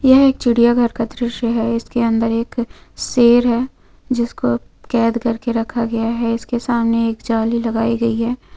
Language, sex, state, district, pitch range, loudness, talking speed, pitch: Hindi, female, Chhattisgarh, Bilaspur, 230-240 Hz, -17 LUFS, 175 wpm, 235 Hz